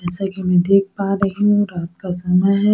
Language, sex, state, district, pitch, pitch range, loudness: Hindi, female, Odisha, Sambalpur, 195 Hz, 180-200 Hz, -18 LUFS